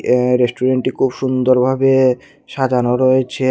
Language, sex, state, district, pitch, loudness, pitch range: Bengali, male, Tripura, Unakoti, 130 Hz, -15 LUFS, 125-130 Hz